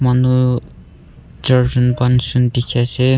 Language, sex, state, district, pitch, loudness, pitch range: Nagamese, male, Nagaland, Kohima, 125 Hz, -15 LUFS, 120-125 Hz